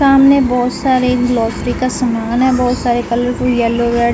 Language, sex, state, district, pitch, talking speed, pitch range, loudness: Hindi, female, Uttar Pradesh, Jalaun, 245 Hz, 190 wpm, 235-255 Hz, -14 LUFS